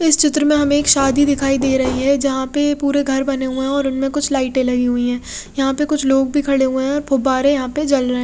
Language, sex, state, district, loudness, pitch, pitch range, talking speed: Hindi, female, Odisha, Khordha, -17 LUFS, 275 Hz, 265-285 Hz, 285 wpm